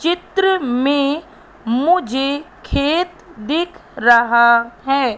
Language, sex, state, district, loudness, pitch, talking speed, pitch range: Hindi, female, Madhya Pradesh, Katni, -17 LUFS, 280 Hz, 80 wpm, 240-345 Hz